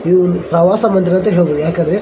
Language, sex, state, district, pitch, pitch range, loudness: Kannada, male, Karnataka, Dharwad, 180 Hz, 170-190 Hz, -13 LUFS